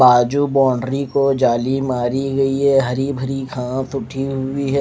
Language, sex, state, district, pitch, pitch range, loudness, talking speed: Hindi, male, Odisha, Khordha, 135 Hz, 130-135 Hz, -18 LUFS, 160 wpm